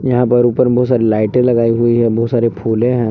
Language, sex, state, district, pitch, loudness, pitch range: Hindi, male, Jharkhand, Palamu, 120 Hz, -13 LUFS, 115-125 Hz